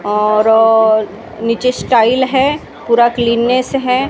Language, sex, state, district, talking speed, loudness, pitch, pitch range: Hindi, female, Maharashtra, Mumbai Suburban, 100 wpm, -13 LUFS, 235 Hz, 225-255 Hz